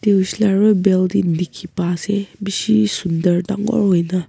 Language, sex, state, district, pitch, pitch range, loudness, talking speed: Nagamese, female, Nagaland, Kohima, 185 Hz, 175-205 Hz, -17 LUFS, 170 wpm